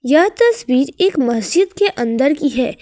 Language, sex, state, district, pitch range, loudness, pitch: Hindi, female, Jharkhand, Ranchi, 255-380 Hz, -15 LUFS, 295 Hz